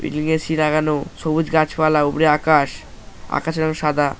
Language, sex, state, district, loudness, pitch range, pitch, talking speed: Bengali, male, West Bengal, Paschim Medinipur, -19 LUFS, 145-155 Hz, 155 Hz, 170 wpm